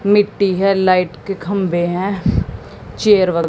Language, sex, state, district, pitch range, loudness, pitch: Hindi, female, Haryana, Jhajjar, 180-200 Hz, -16 LUFS, 195 Hz